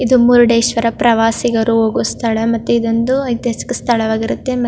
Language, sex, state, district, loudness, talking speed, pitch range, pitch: Kannada, female, Karnataka, Chamarajanagar, -14 LUFS, 220 wpm, 230-245 Hz, 235 Hz